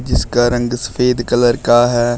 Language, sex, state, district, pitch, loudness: Hindi, male, Uttar Pradesh, Shamli, 120 Hz, -14 LUFS